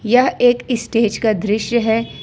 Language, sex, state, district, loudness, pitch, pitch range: Hindi, female, Jharkhand, Ranchi, -17 LUFS, 230 Hz, 220-245 Hz